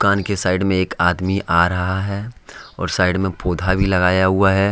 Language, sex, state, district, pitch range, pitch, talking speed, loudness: Hindi, male, Jharkhand, Ranchi, 90-95 Hz, 95 Hz, 215 wpm, -18 LUFS